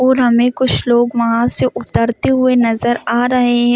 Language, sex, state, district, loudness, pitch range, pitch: Hindi, female, Chhattisgarh, Rajnandgaon, -14 LUFS, 235-250 Hz, 240 Hz